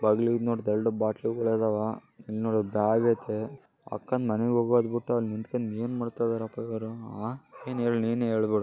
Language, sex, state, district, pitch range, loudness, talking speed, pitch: Kannada, male, Karnataka, Bellary, 110-120 Hz, -29 LUFS, 160 wpm, 115 Hz